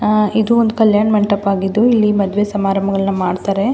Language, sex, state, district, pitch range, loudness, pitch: Kannada, female, Karnataka, Mysore, 195-215 Hz, -15 LUFS, 205 Hz